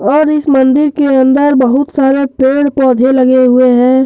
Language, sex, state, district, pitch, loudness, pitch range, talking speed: Hindi, male, Jharkhand, Deoghar, 270 Hz, -9 LUFS, 260-285 Hz, 180 wpm